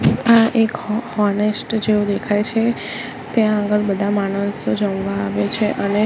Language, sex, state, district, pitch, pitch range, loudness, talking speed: Gujarati, female, Gujarat, Gandhinagar, 210 Hz, 200-220 Hz, -18 LUFS, 150 wpm